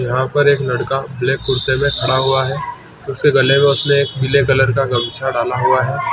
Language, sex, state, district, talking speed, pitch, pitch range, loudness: Hindi, male, Chhattisgarh, Balrampur, 215 wpm, 135 Hz, 130-140 Hz, -15 LUFS